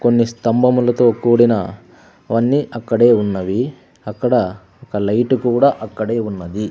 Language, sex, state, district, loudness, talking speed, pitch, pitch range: Telugu, male, Andhra Pradesh, Sri Satya Sai, -16 LUFS, 105 wpm, 115 Hz, 105-125 Hz